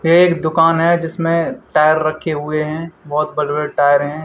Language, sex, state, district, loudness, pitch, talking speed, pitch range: Hindi, male, Haryana, Charkhi Dadri, -16 LUFS, 155 Hz, 210 wpm, 150-165 Hz